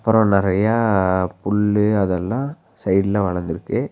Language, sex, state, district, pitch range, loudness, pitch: Tamil, male, Tamil Nadu, Nilgiris, 95-110 Hz, -19 LUFS, 100 Hz